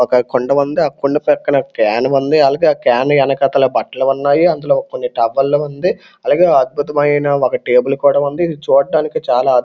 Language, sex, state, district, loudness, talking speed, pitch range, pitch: Telugu, male, Andhra Pradesh, Srikakulam, -14 LUFS, 175 wpm, 135-145 Hz, 140 Hz